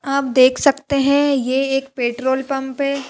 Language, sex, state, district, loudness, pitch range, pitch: Hindi, female, Madhya Pradesh, Bhopal, -17 LUFS, 260-280 Hz, 270 Hz